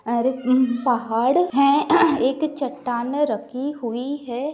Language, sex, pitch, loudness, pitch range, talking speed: Maithili, female, 255 Hz, -21 LUFS, 240-280 Hz, 130 wpm